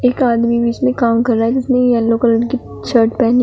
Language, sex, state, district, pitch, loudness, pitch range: Hindi, female, Uttar Pradesh, Shamli, 235 Hz, -14 LUFS, 230-250 Hz